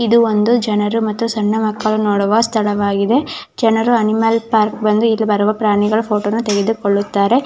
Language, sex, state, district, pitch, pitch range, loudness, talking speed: Kannada, female, Karnataka, Shimoga, 215 Hz, 210-225 Hz, -15 LUFS, 120 wpm